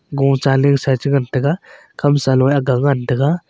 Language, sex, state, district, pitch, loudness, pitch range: Wancho, male, Arunachal Pradesh, Longding, 140 Hz, -16 LUFS, 135-145 Hz